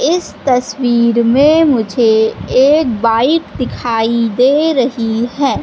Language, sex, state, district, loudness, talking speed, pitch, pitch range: Hindi, female, Madhya Pradesh, Katni, -13 LUFS, 105 wpm, 245 Hz, 230-280 Hz